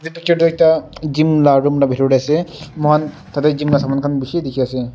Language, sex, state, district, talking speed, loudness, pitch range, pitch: Nagamese, male, Nagaland, Dimapur, 230 wpm, -16 LUFS, 140-155 Hz, 150 Hz